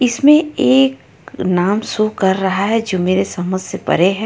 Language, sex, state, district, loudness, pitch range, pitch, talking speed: Hindi, female, Jharkhand, Ranchi, -15 LUFS, 180-215 Hz, 190 Hz, 185 wpm